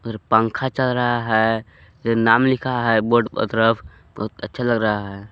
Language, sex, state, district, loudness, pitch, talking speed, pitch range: Hindi, male, Jharkhand, Palamu, -19 LUFS, 115 Hz, 170 wpm, 110-120 Hz